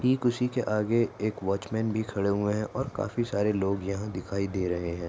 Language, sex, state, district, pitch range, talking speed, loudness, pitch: Hindi, male, Maharashtra, Nagpur, 100-110 Hz, 225 wpm, -29 LUFS, 105 Hz